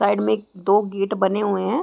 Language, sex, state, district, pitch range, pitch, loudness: Hindi, female, Chhattisgarh, Raigarh, 185-205 Hz, 195 Hz, -21 LUFS